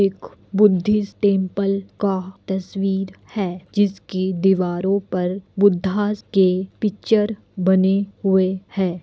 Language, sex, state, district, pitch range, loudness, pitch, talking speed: Hindi, female, Bihar, Kishanganj, 185-200 Hz, -20 LUFS, 195 Hz, 100 wpm